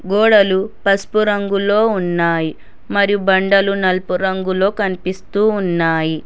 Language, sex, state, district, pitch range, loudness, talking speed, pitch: Telugu, female, Telangana, Hyderabad, 185-205 Hz, -16 LUFS, 95 wpm, 195 Hz